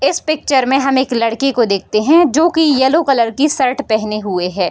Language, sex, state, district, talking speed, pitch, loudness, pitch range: Hindi, female, Bihar, Bhagalpur, 230 wpm, 260 Hz, -14 LUFS, 220-285 Hz